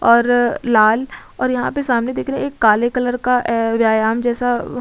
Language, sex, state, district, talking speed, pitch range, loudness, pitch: Hindi, female, Uttar Pradesh, Budaun, 200 wpm, 230-250 Hz, -17 LUFS, 240 Hz